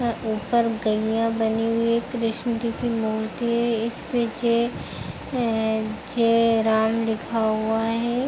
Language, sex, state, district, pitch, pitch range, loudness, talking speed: Hindi, female, Uttar Pradesh, Hamirpur, 230 Hz, 220-235 Hz, -23 LUFS, 130 wpm